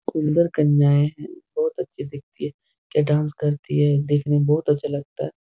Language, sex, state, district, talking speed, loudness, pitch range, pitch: Hindi, male, Bihar, Jahanabad, 190 wpm, -22 LUFS, 145-150 Hz, 150 Hz